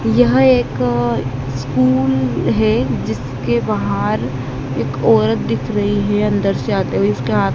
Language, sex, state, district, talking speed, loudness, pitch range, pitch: Hindi, female, Madhya Pradesh, Dhar, 125 wpm, -16 LUFS, 120-130 Hz, 130 Hz